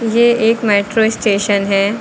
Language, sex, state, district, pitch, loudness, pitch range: Hindi, female, Uttar Pradesh, Lucknow, 220 Hz, -14 LUFS, 200-225 Hz